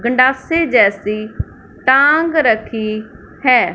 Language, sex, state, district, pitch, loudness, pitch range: Hindi, female, Punjab, Fazilka, 245 Hz, -14 LUFS, 220-285 Hz